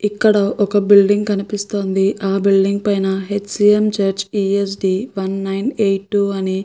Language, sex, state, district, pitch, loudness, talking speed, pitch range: Telugu, female, Andhra Pradesh, Krishna, 200 Hz, -17 LUFS, 180 wpm, 195-205 Hz